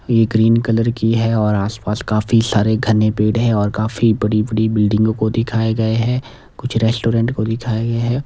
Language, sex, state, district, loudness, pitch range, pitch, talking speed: Hindi, male, Himachal Pradesh, Shimla, -17 LUFS, 110-115 Hz, 110 Hz, 205 wpm